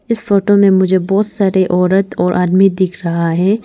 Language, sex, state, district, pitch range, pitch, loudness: Hindi, female, Arunachal Pradesh, Lower Dibang Valley, 180-200 Hz, 190 Hz, -13 LUFS